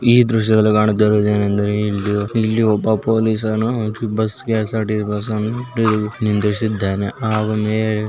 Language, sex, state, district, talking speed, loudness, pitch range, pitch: Kannada, male, Karnataka, Belgaum, 120 wpm, -17 LUFS, 105-110 Hz, 110 Hz